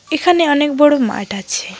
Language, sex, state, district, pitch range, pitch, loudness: Bengali, female, West Bengal, Paschim Medinipur, 250-310 Hz, 295 Hz, -14 LUFS